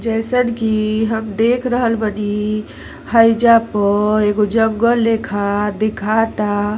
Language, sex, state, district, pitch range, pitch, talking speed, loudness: Bhojpuri, female, Uttar Pradesh, Ghazipur, 210-230 Hz, 220 Hz, 105 wpm, -16 LUFS